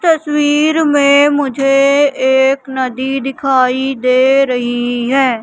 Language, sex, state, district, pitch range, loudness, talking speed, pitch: Hindi, female, Madhya Pradesh, Katni, 260-285 Hz, -12 LUFS, 100 wpm, 270 Hz